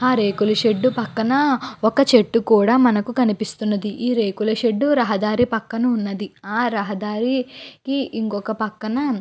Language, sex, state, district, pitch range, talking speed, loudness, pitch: Telugu, female, Andhra Pradesh, Guntur, 210-250 Hz, 130 wpm, -20 LUFS, 225 Hz